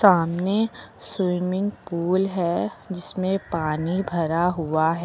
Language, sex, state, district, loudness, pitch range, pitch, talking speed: Hindi, female, Uttar Pradesh, Lucknow, -24 LUFS, 170-190 Hz, 180 Hz, 105 wpm